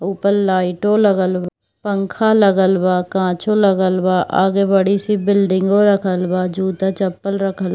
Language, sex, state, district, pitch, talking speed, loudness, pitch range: Hindi, female, Bihar, Darbhanga, 190 Hz, 130 wpm, -16 LUFS, 185-200 Hz